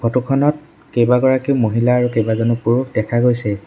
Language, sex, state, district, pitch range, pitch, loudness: Assamese, male, Assam, Sonitpur, 115-130 Hz, 120 Hz, -16 LUFS